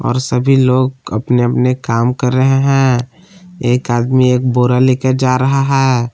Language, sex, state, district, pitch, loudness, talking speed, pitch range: Hindi, male, Jharkhand, Palamu, 130 Hz, -13 LUFS, 155 wpm, 125-135 Hz